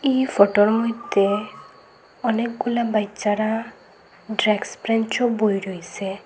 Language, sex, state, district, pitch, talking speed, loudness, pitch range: Bengali, female, Assam, Hailakandi, 215 Hz, 85 wpm, -21 LUFS, 200-235 Hz